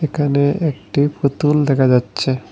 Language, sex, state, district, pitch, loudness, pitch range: Bengali, male, Assam, Hailakandi, 140 Hz, -17 LUFS, 130-150 Hz